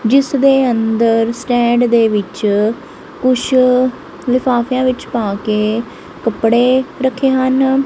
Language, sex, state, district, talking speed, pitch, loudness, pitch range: Punjabi, male, Punjab, Kapurthala, 105 wpm, 245 Hz, -14 LUFS, 225-260 Hz